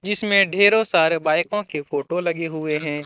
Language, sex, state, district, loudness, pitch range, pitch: Hindi, male, Jharkhand, Ranchi, -19 LUFS, 150-200 Hz, 165 Hz